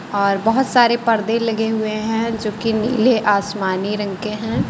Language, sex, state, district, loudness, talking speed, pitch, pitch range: Hindi, female, Uttar Pradesh, Lucknow, -18 LUFS, 180 wpm, 220 Hz, 205-230 Hz